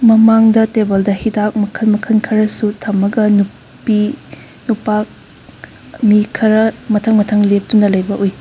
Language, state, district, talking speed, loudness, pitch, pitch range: Manipuri, Manipur, Imphal West, 115 wpm, -13 LUFS, 215 Hz, 205-220 Hz